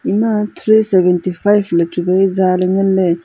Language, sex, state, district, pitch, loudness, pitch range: Wancho, female, Arunachal Pradesh, Longding, 190 Hz, -14 LUFS, 180-205 Hz